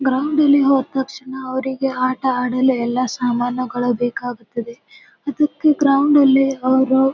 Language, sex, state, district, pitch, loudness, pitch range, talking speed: Kannada, female, Karnataka, Bijapur, 265 Hz, -18 LUFS, 250-275 Hz, 125 wpm